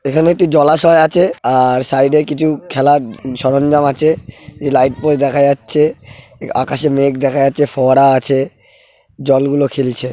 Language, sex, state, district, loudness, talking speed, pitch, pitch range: Bengali, male, West Bengal, Jalpaiguri, -13 LUFS, 140 wpm, 140 Hz, 135-150 Hz